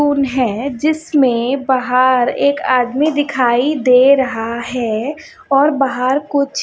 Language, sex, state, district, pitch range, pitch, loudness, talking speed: Hindi, female, Chhattisgarh, Raipur, 250-285 Hz, 265 Hz, -15 LUFS, 115 wpm